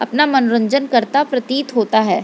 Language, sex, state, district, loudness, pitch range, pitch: Hindi, female, Bihar, Lakhisarai, -16 LUFS, 230-275 Hz, 255 Hz